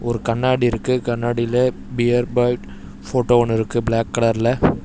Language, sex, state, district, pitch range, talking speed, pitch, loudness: Tamil, male, Tamil Nadu, Chennai, 115-120 Hz, 150 wpm, 120 Hz, -19 LUFS